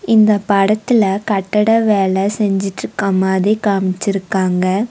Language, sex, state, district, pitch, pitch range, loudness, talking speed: Tamil, female, Tamil Nadu, Nilgiris, 200 Hz, 195-210 Hz, -15 LUFS, 85 wpm